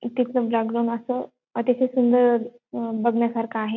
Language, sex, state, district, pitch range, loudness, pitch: Marathi, female, Maharashtra, Dhule, 230-250 Hz, -23 LUFS, 235 Hz